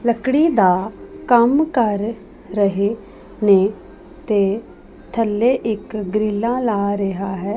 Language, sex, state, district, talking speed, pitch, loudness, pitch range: Punjabi, female, Punjab, Pathankot, 105 wpm, 215 Hz, -18 LUFS, 200-235 Hz